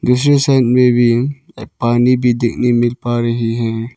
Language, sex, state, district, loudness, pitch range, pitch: Hindi, male, Arunachal Pradesh, Lower Dibang Valley, -14 LUFS, 120-125 Hz, 120 Hz